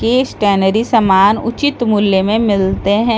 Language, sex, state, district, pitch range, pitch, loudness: Hindi, female, Delhi, New Delhi, 200-230 Hz, 215 Hz, -13 LUFS